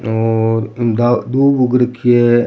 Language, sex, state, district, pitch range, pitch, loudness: Rajasthani, male, Rajasthan, Churu, 115-125 Hz, 120 Hz, -14 LUFS